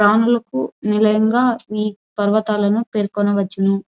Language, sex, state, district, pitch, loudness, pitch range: Telugu, female, Andhra Pradesh, Anantapur, 210 Hz, -18 LUFS, 205-220 Hz